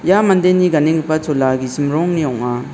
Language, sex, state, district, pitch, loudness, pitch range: Garo, male, Meghalaya, South Garo Hills, 155 Hz, -15 LUFS, 130-175 Hz